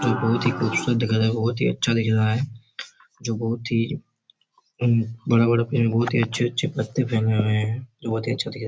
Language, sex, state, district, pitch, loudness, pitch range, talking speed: Hindi, male, Chhattisgarh, Raigarh, 115 Hz, -23 LUFS, 115-120 Hz, 230 wpm